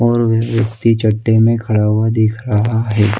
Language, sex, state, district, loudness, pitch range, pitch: Hindi, male, Chhattisgarh, Bilaspur, -14 LUFS, 110-115 Hz, 110 Hz